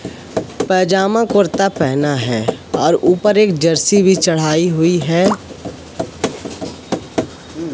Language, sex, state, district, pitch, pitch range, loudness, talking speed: Hindi, male, Madhya Pradesh, Katni, 180 Hz, 160-195 Hz, -15 LUFS, 95 wpm